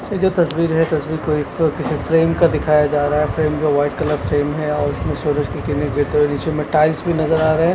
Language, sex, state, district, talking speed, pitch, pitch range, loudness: Hindi, male, Punjab, Kapurthala, 225 wpm, 150 Hz, 145-160 Hz, -18 LUFS